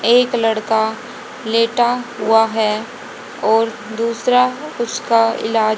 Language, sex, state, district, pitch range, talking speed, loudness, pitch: Hindi, female, Haryana, Jhajjar, 220-245 Hz, 95 wpm, -17 LUFS, 230 Hz